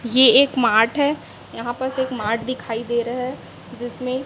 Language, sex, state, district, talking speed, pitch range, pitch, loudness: Hindi, female, Chhattisgarh, Raipur, 170 wpm, 235-260 Hz, 245 Hz, -19 LUFS